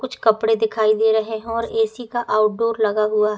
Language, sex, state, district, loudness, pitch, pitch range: Hindi, female, Uttar Pradesh, Etah, -19 LUFS, 220 Hz, 215-230 Hz